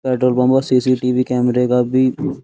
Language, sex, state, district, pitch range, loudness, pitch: Hindi, male, Uttar Pradesh, Jyotiba Phule Nagar, 125-130 Hz, -16 LUFS, 125 Hz